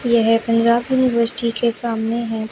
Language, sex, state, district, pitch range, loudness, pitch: Hindi, female, Chandigarh, Chandigarh, 230-235 Hz, -17 LUFS, 235 Hz